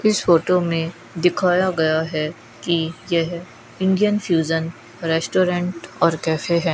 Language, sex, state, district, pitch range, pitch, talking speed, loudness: Hindi, female, Rajasthan, Bikaner, 160-180 Hz, 170 Hz, 125 wpm, -20 LUFS